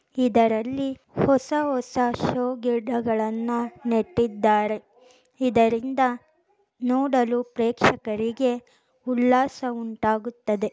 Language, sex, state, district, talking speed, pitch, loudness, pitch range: Kannada, female, Karnataka, Chamarajanagar, 55 wpm, 245 Hz, -24 LUFS, 230-255 Hz